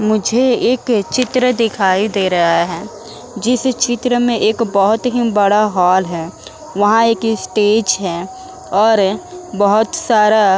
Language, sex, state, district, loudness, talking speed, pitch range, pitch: Hindi, female, Uttar Pradesh, Muzaffarnagar, -14 LUFS, 135 wpm, 195-240 Hz, 215 Hz